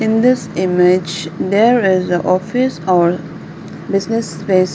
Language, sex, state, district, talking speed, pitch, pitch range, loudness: English, female, Arunachal Pradesh, Lower Dibang Valley, 125 wpm, 185 Hz, 180-220 Hz, -15 LUFS